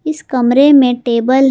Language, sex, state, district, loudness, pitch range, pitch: Hindi, female, Jharkhand, Palamu, -11 LUFS, 245-280 Hz, 260 Hz